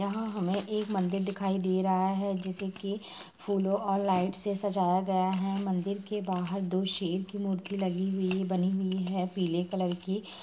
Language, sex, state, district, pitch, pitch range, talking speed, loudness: Hindi, female, Bihar, Gaya, 190 Hz, 185-200 Hz, 185 wpm, -31 LUFS